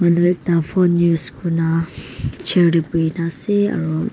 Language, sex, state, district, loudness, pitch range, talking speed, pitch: Nagamese, female, Nagaland, Kohima, -18 LUFS, 165-175 Hz, 160 wpm, 170 Hz